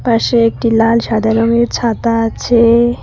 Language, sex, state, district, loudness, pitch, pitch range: Bengali, female, West Bengal, Cooch Behar, -12 LUFS, 230 Hz, 225-235 Hz